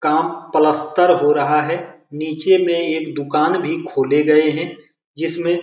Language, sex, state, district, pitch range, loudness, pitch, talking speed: Hindi, male, Bihar, Saran, 150-170 Hz, -17 LUFS, 160 Hz, 160 wpm